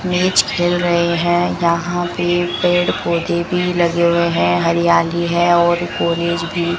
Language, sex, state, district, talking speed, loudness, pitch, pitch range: Hindi, female, Rajasthan, Bikaner, 160 wpm, -16 LUFS, 170 Hz, 170-175 Hz